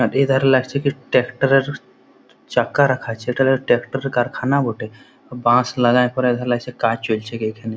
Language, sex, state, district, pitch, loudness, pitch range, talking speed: Bengali, male, West Bengal, Jhargram, 125 Hz, -19 LUFS, 120-135 Hz, 170 wpm